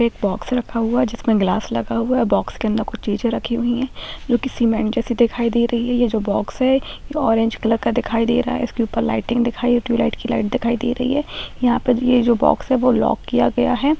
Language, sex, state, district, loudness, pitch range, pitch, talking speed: Hindi, female, Bihar, Muzaffarpur, -19 LUFS, 225-250 Hz, 235 Hz, 255 wpm